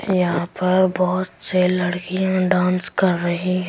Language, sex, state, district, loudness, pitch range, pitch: Hindi, female, Delhi, New Delhi, -19 LUFS, 180-185 Hz, 185 Hz